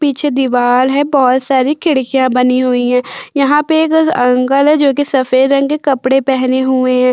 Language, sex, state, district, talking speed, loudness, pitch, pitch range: Hindi, female, Uttar Pradesh, Budaun, 195 wpm, -12 LUFS, 265 Hz, 255-285 Hz